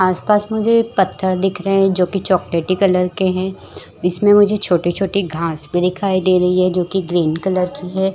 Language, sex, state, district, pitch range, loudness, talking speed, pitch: Chhattisgarhi, female, Chhattisgarh, Jashpur, 180-195 Hz, -16 LUFS, 200 wpm, 185 Hz